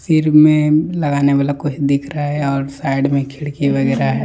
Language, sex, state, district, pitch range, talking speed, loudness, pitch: Hindi, male, Jharkhand, Deoghar, 140-150 Hz, 200 wpm, -16 LUFS, 140 Hz